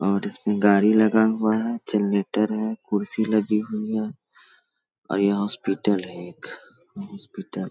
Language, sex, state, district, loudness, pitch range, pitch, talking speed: Hindi, male, Bihar, Begusarai, -23 LUFS, 100-110 Hz, 105 Hz, 155 wpm